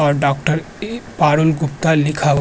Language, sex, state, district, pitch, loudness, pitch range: Hindi, male, Uttar Pradesh, Budaun, 150 Hz, -17 LUFS, 145-160 Hz